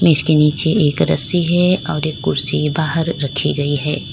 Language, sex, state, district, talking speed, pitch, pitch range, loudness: Hindi, female, Uttar Pradesh, Lalitpur, 175 wpm, 155 Hz, 145-165 Hz, -16 LUFS